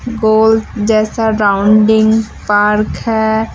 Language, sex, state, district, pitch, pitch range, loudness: Hindi, female, Jharkhand, Deoghar, 220 Hz, 210-220 Hz, -12 LUFS